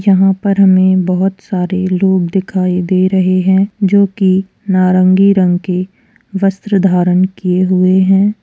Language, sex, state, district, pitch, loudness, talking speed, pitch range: Hindi, female, Bihar, Gaya, 190 Hz, -12 LUFS, 140 wpm, 185-195 Hz